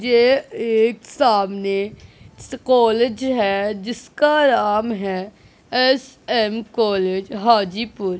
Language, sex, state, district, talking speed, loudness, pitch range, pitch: Hindi, male, Punjab, Pathankot, 80 wpm, -19 LUFS, 200-240 Hz, 225 Hz